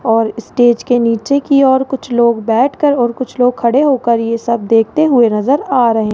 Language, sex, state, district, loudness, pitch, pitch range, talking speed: Hindi, female, Rajasthan, Jaipur, -13 LUFS, 240 Hz, 230-270 Hz, 215 wpm